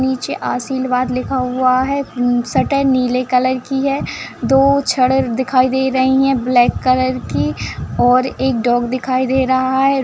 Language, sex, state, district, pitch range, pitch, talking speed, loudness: Hindi, female, Bihar, Madhepura, 255-265 Hz, 255 Hz, 155 wpm, -16 LUFS